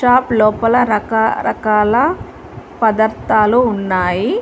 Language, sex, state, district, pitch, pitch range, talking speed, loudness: Telugu, female, Telangana, Mahabubabad, 220 Hz, 215-245 Hz, 80 wpm, -14 LUFS